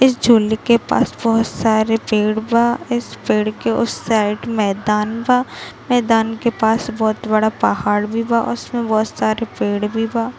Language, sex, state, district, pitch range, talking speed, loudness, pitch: Hindi, female, Chhattisgarh, Bilaspur, 210-235 Hz, 175 wpm, -17 LUFS, 220 Hz